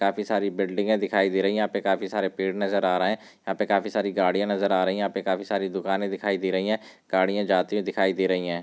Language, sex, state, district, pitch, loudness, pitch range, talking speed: Hindi, male, Rajasthan, Churu, 100 Hz, -25 LUFS, 95-100 Hz, 285 wpm